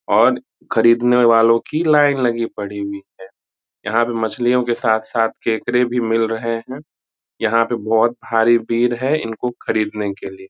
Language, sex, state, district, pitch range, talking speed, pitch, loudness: Hindi, male, Bihar, Muzaffarpur, 110-120 Hz, 165 wpm, 115 Hz, -18 LUFS